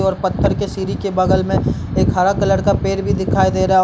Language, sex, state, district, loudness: Hindi, male, Bihar, Darbhanga, -17 LUFS